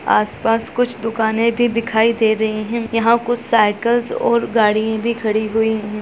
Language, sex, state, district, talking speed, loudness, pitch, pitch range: Hindi, female, Bihar, Muzaffarpur, 170 wpm, -17 LUFS, 225 Hz, 220-235 Hz